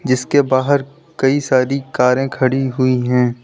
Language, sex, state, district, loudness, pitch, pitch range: Hindi, male, Uttar Pradesh, Lalitpur, -16 LUFS, 130 Hz, 130-140 Hz